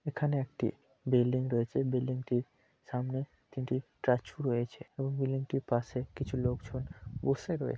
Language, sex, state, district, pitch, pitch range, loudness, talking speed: Bengali, male, West Bengal, Purulia, 130 Hz, 125-135 Hz, -34 LUFS, 145 wpm